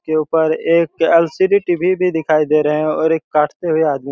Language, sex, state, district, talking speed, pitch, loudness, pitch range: Hindi, male, Chhattisgarh, Raigarh, 220 wpm, 160 Hz, -15 LUFS, 155-170 Hz